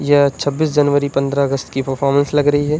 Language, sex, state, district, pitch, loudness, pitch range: Hindi, male, Uttar Pradesh, Budaun, 145 Hz, -16 LUFS, 140-145 Hz